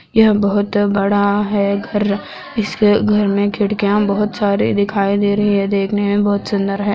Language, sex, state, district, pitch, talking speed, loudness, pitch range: Hindi, female, Andhra Pradesh, Anantapur, 205 Hz, 175 wpm, -16 LUFS, 200-210 Hz